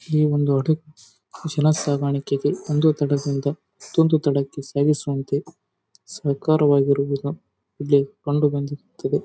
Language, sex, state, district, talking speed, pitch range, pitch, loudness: Kannada, male, Karnataka, Raichur, 80 wpm, 140-155 Hz, 145 Hz, -22 LUFS